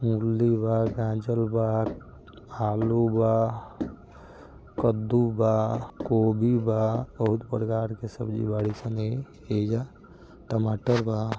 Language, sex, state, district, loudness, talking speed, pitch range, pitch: Bhojpuri, male, Bihar, Gopalganj, -26 LUFS, 95 wpm, 110-115 Hz, 115 Hz